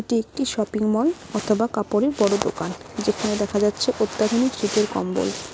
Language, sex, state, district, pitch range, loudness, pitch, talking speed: Bengali, female, West Bengal, Cooch Behar, 205-230 Hz, -23 LUFS, 215 Hz, 150 wpm